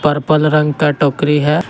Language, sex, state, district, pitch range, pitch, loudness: Hindi, male, Jharkhand, Garhwa, 150-155 Hz, 150 Hz, -14 LUFS